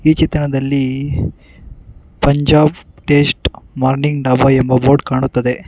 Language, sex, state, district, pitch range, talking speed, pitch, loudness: Kannada, male, Karnataka, Bangalore, 130-145 Hz, 95 wpm, 135 Hz, -14 LUFS